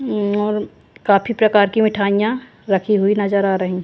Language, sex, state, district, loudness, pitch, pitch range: Hindi, female, Haryana, Jhajjar, -17 LUFS, 205 Hz, 200-220 Hz